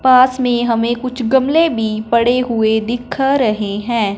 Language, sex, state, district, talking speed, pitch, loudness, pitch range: Hindi, female, Punjab, Fazilka, 160 wpm, 240 Hz, -15 LUFS, 220-255 Hz